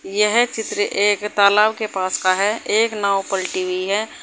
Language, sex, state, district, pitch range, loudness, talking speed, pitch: Hindi, female, Uttar Pradesh, Saharanpur, 195-220 Hz, -18 LUFS, 185 wpm, 205 Hz